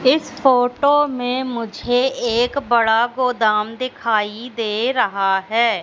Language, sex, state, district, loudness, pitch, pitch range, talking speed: Hindi, female, Madhya Pradesh, Katni, -18 LUFS, 240 Hz, 225-255 Hz, 115 wpm